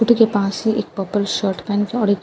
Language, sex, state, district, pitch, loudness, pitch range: Hindi, female, Bihar, Katihar, 205 Hz, -19 LUFS, 200-220 Hz